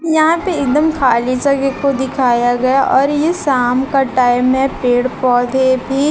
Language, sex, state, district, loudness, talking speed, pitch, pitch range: Hindi, female, Chhattisgarh, Raipur, -14 LUFS, 165 wpm, 265 Hz, 250-280 Hz